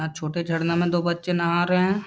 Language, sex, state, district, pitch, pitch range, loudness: Hindi, male, Bihar, Muzaffarpur, 170 Hz, 170-175 Hz, -23 LUFS